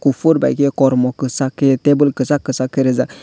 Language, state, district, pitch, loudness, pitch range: Kokborok, Tripura, West Tripura, 135 Hz, -16 LUFS, 130-145 Hz